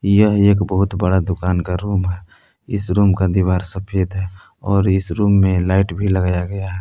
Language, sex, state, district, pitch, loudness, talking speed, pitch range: Hindi, male, Jharkhand, Palamu, 95 Hz, -17 LUFS, 195 wpm, 90-100 Hz